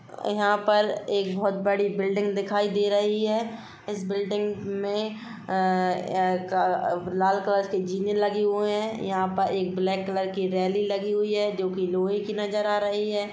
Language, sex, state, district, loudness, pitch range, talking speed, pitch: Hindi, female, Chhattisgarh, Rajnandgaon, -26 LUFS, 190-210 Hz, 175 wpm, 200 Hz